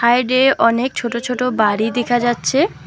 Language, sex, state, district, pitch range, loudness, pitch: Bengali, female, West Bengal, Alipurduar, 235-255 Hz, -16 LUFS, 245 Hz